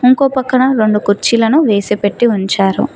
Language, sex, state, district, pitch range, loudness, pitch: Telugu, female, Telangana, Mahabubabad, 205-255 Hz, -12 LUFS, 225 Hz